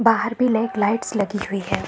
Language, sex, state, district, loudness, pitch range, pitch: Hindi, female, Bihar, Saran, -21 LUFS, 205-235 Hz, 225 Hz